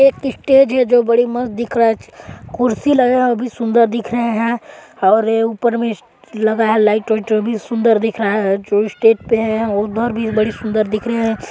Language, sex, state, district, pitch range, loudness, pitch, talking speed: Hindi, female, Chhattisgarh, Balrampur, 220-240 Hz, -16 LUFS, 225 Hz, 230 wpm